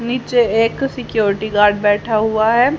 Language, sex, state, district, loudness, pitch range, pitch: Hindi, female, Haryana, Jhajjar, -16 LUFS, 210-245 Hz, 225 Hz